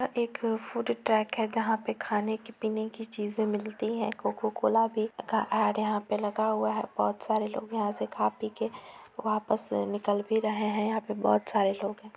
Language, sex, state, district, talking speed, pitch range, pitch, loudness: Hindi, female, Bihar, Gopalganj, 210 wpm, 210-225 Hz, 215 Hz, -30 LUFS